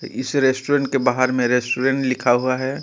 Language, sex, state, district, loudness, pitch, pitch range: Hindi, male, Jharkhand, Ranchi, -19 LUFS, 130 Hz, 125-135 Hz